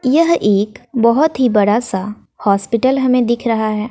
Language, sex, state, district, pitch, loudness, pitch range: Hindi, female, Bihar, West Champaran, 230 Hz, -15 LUFS, 210-255 Hz